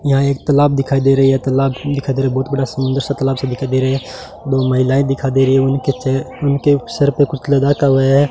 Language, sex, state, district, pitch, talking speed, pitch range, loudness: Hindi, male, Rajasthan, Bikaner, 135 Hz, 255 wpm, 135-140 Hz, -15 LUFS